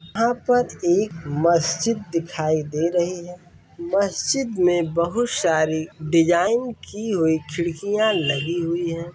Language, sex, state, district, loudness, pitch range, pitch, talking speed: Hindi, male, Uttar Pradesh, Varanasi, -22 LUFS, 165-210 Hz, 175 Hz, 125 wpm